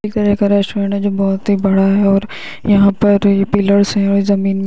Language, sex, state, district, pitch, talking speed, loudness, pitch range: Hindi, female, Uttar Pradesh, Hamirpur, 200 Hz, 245 wpm, -14 LUFS, 195-205 Hz